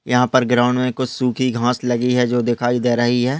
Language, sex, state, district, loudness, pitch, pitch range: Hindi, male, Maharashtra, Pune, -18 LUFS, 125 Hz, 120-125 Hz